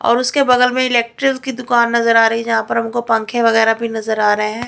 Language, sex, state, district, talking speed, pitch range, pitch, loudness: Hindi, female, Bihar, Katihar, 270 wpm, 225-250 Hz, 235 Hz, -15 LUFS